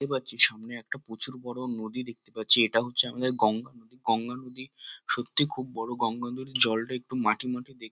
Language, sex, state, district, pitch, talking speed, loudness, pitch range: Bengali, male, West Bengal, Kolkata, 120 Hz, 180 wpm, -25 LUFS, 115-130 Hz